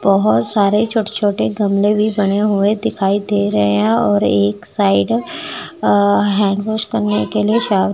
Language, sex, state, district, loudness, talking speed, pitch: Hindi, female, Chandigarh, Chandigarh, -15 LUFS, 165 wpm, 205 Hz